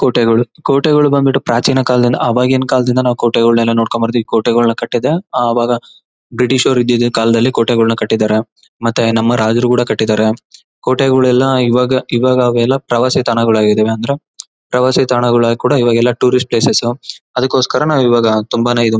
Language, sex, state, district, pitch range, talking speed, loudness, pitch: Kannada, male, Karnataka, Bellary, 115-130 Hz, 140 wpm, -13 LUFS, 120 Hz